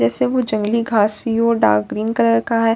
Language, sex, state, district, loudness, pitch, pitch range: Hindi, female, Bihar, Katihar, -17 LUFS, 225 Hz, 210-230 Hz